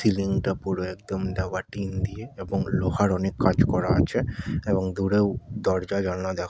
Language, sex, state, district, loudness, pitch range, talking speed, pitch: Bengali, male, West Bengal, Malda, -26 LUFS, 95-100 Hz, 165 wpm, 95 Hz